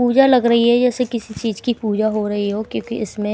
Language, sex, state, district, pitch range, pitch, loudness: Hindi, female, Himachal Pradesh, Shimla, 215-245 Hz, 230 Hz, -18 LUFS